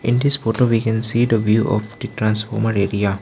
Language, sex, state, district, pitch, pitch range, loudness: English, male, Arunachal Pradesh, Lower Dibang Valley, 110 Hz, 105-115 Hz, -17 LUFS